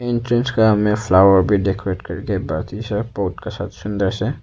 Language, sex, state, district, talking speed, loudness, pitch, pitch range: Hindi, male, Arunachal Pradesh, Papum Pare, 160 wpm, -19 LUFS, 105 Hz, 95-110 Hz